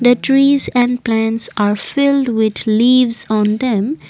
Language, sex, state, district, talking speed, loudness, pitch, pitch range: English, female, Assam, Kamrup Metropolitan, 145 wpm, -14 LUFS, 235 Hz, 220-255 Hz